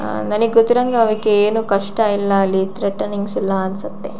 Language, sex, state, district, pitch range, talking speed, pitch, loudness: Kannada, female, Karnataka, Shimoga, 195-220 Hz, 130 wpm, 200 Hz, -17 LUFS